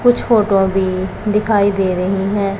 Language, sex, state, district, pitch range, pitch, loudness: Hindi, male, Punjab, Pathankot, 190-210 Hz, 195 Hz, -15 LUFS